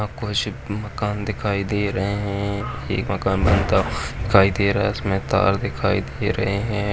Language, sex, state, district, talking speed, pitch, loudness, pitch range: Bhojpuri, male, Uttar Pradesh, Gorakhpur, 165 wpm, 100 Hz, -22 LUFS, 100-105 Hz